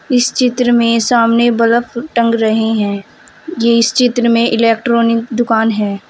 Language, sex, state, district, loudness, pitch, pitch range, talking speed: Hindi, female, Uttar Pradesh, Saharanpur, -13 LUFS, 230 Hz, 225-240 Hz, 145 wpm